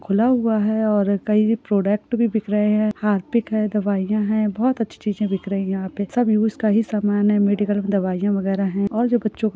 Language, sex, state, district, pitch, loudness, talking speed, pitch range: Hindi, female, Chhattisgarh, Rajnandgaon, 210 Hz, -20 LUFS, 230 wpm, 200-220 Hz